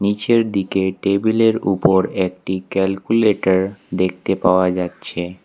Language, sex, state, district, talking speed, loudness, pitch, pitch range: Bengali, male, West Bengal, Alipurduar, 100 wpm, -18 LUFS, 95 Hz, 95-100 Hz